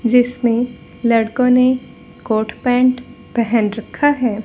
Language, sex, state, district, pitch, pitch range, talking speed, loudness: Hindi, female, Haryana, Rohtak, 245 Hz, 230-250 Hz, 110 wpm, -17 LUFS